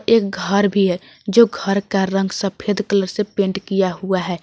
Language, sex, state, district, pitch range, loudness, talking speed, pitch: Hindi, female, Jharkhand, Garhwa, 190-205 Hz, -18 LUFS, 205 wpm, 195 Hz